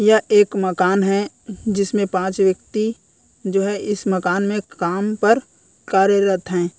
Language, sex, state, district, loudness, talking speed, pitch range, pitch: Hindi, female, Chhattisgarh, Korba, -19 LUFS, 140 wpm, 190-210 Hz, 200 Hz